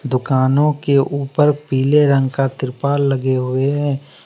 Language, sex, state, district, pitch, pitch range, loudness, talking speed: Hindi, male, Jharkhand, Deoghar, 140 Hz, 130-145 Hz, -17 LUFS, 140 wpm